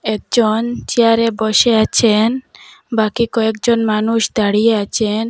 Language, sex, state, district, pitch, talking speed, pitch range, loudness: Bengali, female, Assam, Hailakandi, 225 Hz, 115 wpm, 215-230 Hz, -15 LUFS